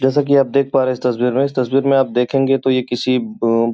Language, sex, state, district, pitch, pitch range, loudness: Hindi, male, Uttar Pradesh, Gorakhpur, 130 Hz, 125-135 Hz, -16 LUFS